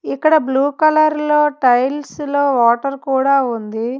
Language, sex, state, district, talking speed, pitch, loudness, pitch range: Telugu, female, Telangana, Hyderabad, 135 wpm, 275 Hz, -15 LUFS, 260-300 Hz